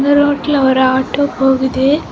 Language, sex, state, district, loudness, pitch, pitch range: Tamil, female, Tamil Nadu, Kanyakumari, -13 LUFS, 270 Hz, 265-285 Hz